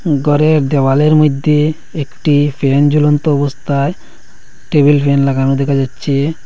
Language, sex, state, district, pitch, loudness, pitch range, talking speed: Bengali, male, Assam, Hailakandi, 145 Hz, -13 LUFS, 140-150 Hz, 110 wpm